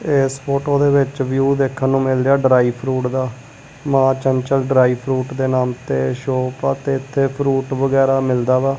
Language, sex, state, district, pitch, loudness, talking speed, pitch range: Punjabi, male, Punjab, Kapurthala, 135 Hz, -17 LUFS, 170 wpm, 130-135 Hz